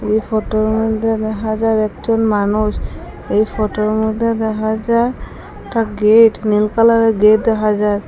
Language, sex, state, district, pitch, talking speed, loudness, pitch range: Bengali, female, Assam, Hailakandi, 220 Hz, 140 wpm, -15 LUFS, 215-225 Hz